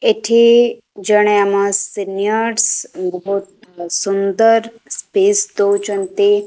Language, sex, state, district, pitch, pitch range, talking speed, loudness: Odia, female, Odisha, Khordha, 205 Hz, 195-230 Hz, 75 wpm, -15 LUFS